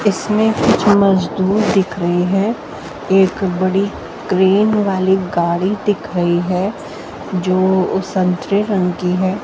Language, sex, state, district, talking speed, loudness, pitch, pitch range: Hindi, female, Haryana, Jhajjar, 115 wpm, -16 LUFS, 190 Hz, 180-200 Hz